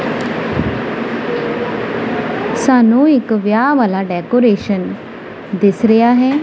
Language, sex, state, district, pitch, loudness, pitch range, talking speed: Punjabi, female, Punjab, Kapurthala, 230 Hz, -14 LUFS, 210-245 Hz, 75 wpm